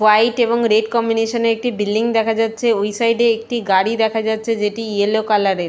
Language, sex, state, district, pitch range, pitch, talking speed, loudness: Bengali, female, West Bengal, Jalpaiguri, 215-230 Hz, 225 Hz, 220 wpm, -17 LUFS